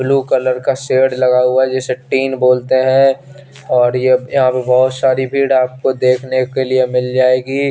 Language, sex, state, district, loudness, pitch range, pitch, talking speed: Hindi, male, Chandigarh, Chandigarh, -14 LUFS, 125-135 Hz, 130 Hz, 195 wpm